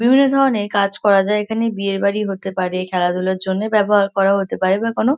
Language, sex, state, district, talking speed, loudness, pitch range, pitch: Bengali, female, West Bengal, North 24 Parganas, 210 wpm, -17 LUFS, 190-220 Hz, 200 Hz